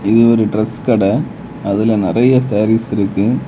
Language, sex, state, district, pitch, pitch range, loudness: Tamil, male, Tamil Nadu, Kanyakumari, 110 Hz, 105-115 Hz, -14 LUFS